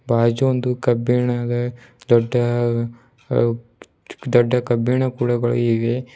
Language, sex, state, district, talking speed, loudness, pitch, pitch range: Kannada, male, Karnataka, Bidar, 90 wpm, -19 LUFS, 120 Hz, 120-125 Hz